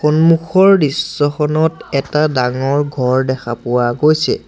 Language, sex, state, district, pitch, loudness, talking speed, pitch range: Assamese, male, Assam, Sonitpur, 145 Hz, -14 LUFS, 105 wpm, 130-155 Hz